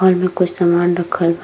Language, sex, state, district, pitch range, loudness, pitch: Bhojpuri, female, Uttar Pradesh, Gorakhpur, 175-180 Hz, -16 LUFS, 175 Hz